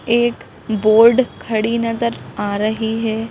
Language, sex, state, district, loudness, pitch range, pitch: Hindi, female, Madhya Pradesh, Bhopal, -17 LUFS, 215-235 Hz, 225 Hz